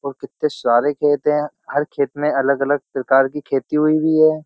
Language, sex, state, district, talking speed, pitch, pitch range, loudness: Hindi, male, Uttar Pradesh, Jyotiba Phule Nagar, 200 wpm, 145 Hz, 140-150 Hz, -18 LUFS